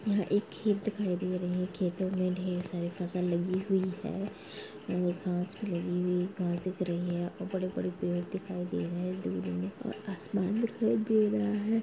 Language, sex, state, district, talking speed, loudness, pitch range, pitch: Hindi, female, Bihar, Gopalganj, 185 wpm, -33 LUFS, 180-205 Hz, 185 Hz